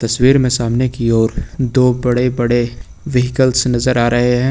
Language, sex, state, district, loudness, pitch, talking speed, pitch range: Hindi, male, Uttar Pradesh, Lucknow, -15 LUFS, 125 Hz, 175 wpm, 120-130 Hz